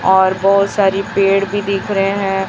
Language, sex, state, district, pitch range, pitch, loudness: Hindi, female, Chhattisgarh, Raipur, 195-200 Hz, 195 Hz, -15 LUFS